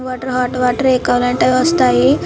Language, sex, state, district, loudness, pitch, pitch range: Telugu, female, Andhra Pradesh, Krishna, -14 LUFS, 255 Hz, 250-255 Hz